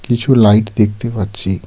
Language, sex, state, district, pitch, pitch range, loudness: Bengali, male, West Bengal, Darjeeling, 105 Hz, 100-120 Hz, -13 LUFS